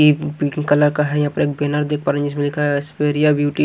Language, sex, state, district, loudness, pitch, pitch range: Hindi, male, Haryana, Jhajjar, -18 LUFS, 145 Hz, 145-150 Hz